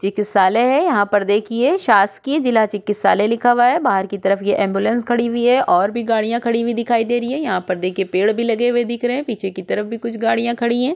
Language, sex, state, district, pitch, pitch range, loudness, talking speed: Hindi, female, Chhattisgarh, Sukma, 230 Hz, 200-240 Hz, -17 LUFS, 245 wpm